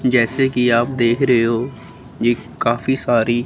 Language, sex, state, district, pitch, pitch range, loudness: Hindi, female, Chandigarh, Chandigarh, 120 Hz, 115-130 Hz, -17 LUFS